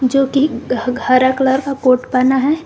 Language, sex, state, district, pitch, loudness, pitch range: Hindi, female, Jharkhand, Garhwa, 260 Hz, -15 LUFS, 255-275 Hz